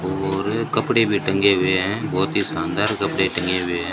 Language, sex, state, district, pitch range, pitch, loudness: Hindi, male, Rajasthan, Bikaner, 95-100 Hz, 95 Hz, -20 LUFS